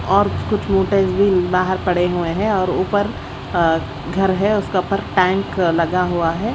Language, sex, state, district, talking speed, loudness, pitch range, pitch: Hindi, female, Odisha, Khordha, 175 wpm, -18 LUFS, 175-195 Hz, 185 Hz